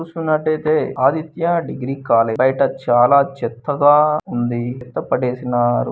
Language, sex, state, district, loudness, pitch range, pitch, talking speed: Telugu, male, Andhra Pradesh, Srikakulam, -17 LUFS, 120-155 Hz, 135 Hz, 120 wpm